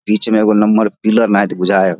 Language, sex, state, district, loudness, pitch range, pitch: Maithili, male, Bihar, Samastipur, -12 LUFS, 100-110 Hz, 105 Hz